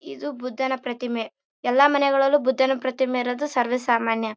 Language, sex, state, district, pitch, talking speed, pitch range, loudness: Kannada, female, Karnataka, Raichur, 260 Hz, 135 wpm, 245-270 Hz, -22 LUFS